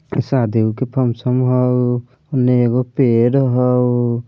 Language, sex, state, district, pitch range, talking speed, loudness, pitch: Bajjika, male, Bihar, Vaishali, 120-130 Hz, 125 wpm, -16 LUFS, 125 Hz